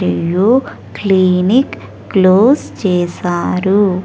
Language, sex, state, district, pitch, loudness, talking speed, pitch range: Telugu, female, Andhra Pradesh, Sri Satya Sai, 190 Hz, -13 LUFS, 45 wpm, 180-205 Hz